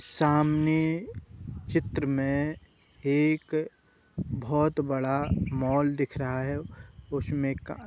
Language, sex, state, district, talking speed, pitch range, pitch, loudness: Hindi, male, Uttar Pradesh, Budaun, 100 wpm, 135-150 Hz, 145 Hz, -28 LUFS